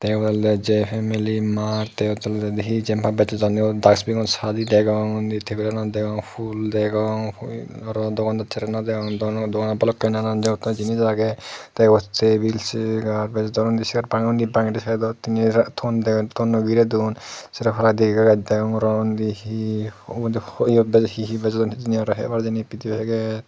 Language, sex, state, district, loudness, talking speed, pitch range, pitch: Chakma, male, Tripura, Unakoti, -21 LUFS, 155 wpm, 110-115 Hz, 110 Hz